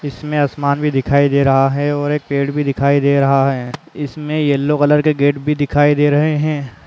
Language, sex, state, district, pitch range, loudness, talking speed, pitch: Chhattisgarhi, male, Chhattisgarh, Raigarh, 140-150 Hz, -15 LUFS, 225 wpm, 145 Hz